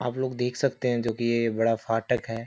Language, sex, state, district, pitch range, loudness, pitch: Hindi, male, Bihar, Kishanganj, 115-125 Hz, -26 LUFS, 120 Hz